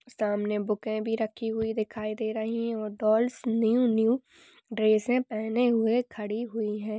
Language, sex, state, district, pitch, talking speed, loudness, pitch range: Hindi, female, Maharashtra, Nagpur, 220 Hz, 165 wpm, -28 LUFS, 215-230 Hz